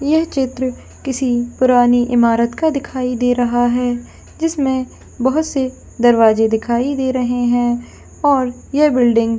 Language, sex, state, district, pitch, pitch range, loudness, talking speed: Hindi, female, Jharkhand, Jamtara, 245 Hz, 240-265 Hz, -16 LUFS, 140 wpm